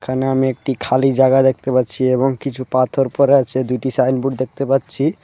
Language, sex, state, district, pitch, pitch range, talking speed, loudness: Bengali, male, Tripura, West Tripura, 130 Hz, 130-135 Hz, 205 wpm, -17 LUFS